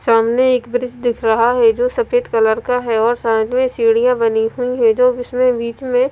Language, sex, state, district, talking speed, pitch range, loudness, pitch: Hindi, female, Punjab, Fazilka, 215 wpm, 230-250 Hz, -15 LUFS, 245 Hz